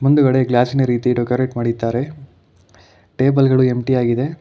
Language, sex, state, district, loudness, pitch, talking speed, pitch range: Kannada, male, Karnataka, Bangalore, -17 LUFS, 125 Hz, 135 wpm, 120-135 Hz